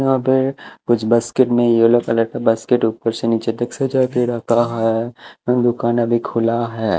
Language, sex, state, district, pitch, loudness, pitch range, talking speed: Hindi, male, Chhattisgarh, Raipur, 120 Hz, -17 LUFS, 115-120 Hz, 180 wpm